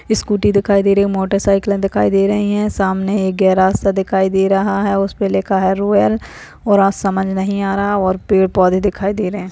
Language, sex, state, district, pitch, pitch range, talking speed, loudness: Hindi, male, Uttarakhand, Uttarkashi, 195 Hz, 190-200 Hz, 215 wpm, -15 LUFS